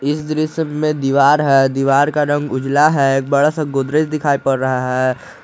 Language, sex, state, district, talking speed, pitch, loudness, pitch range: Hindi, male, Jharkhand, Garhwa, 190 wpm, 140 Hz, -16 LUFS, 135-150 Hz